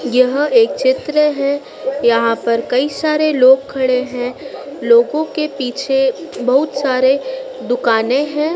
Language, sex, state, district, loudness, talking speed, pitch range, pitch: Hindi, female, Madhya Pradesh, Dhar, -15 LUFS, 125 wpm, 255-305 Hz, 275 Hz